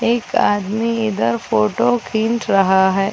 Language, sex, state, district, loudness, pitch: Hindi, female, Chhattisgarh, Raigarh, -17 LUFS, 200 Hz